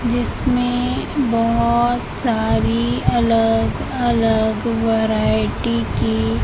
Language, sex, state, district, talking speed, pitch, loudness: Hindi, female, Madhya Pradesh, Katni, 65 wpm, 225 Hz, -18 LUFS